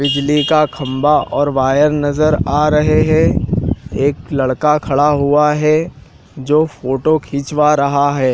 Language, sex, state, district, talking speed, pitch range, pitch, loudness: Hindi, male, Madhya Pradesh, Dhar, 135 wpm, 140-150 Hz, 145 Hz, -14 LUFS